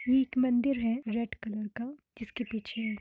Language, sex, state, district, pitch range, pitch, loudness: Hindi, female, Bihar, Darbhanga, 220-255 Hz, 235 Hz, -32 LUFS